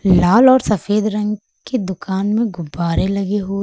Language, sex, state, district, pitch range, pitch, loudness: Hindi, female, Uttar Pradesh, Lucknow, 190-210 Hz, 200 Hz, -17 LUFS